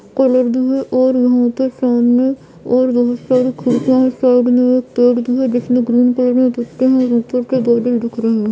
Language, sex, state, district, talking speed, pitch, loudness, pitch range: Hindi, female, Bihar, Purnia, 195 wpm, 250 Hz, -14 LUFS, 245-255 Hz